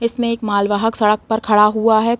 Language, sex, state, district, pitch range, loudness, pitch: Hindi, female, Uttar Pradesh, Deoria, 210-230 Hz, -16 LUFS, 220 Hz